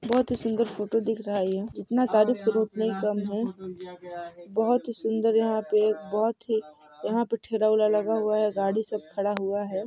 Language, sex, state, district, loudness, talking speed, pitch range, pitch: Hindi, male, Chhattisgarh, Sarguja, -26 LUFS, 195 wpm, 200-225 Hz, 215 Hz